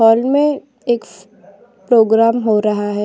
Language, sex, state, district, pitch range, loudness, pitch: Hindi, female, Uttar Pradesh, Jyotiba Phule Nagar, 215-240 Hz, -15 LUFS, 225 Hz